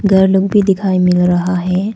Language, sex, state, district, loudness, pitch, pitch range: Hindi, female, Arunachal Pradesh, Papum Pare, -13 LUFS, 190 Hz, 180-195 Hz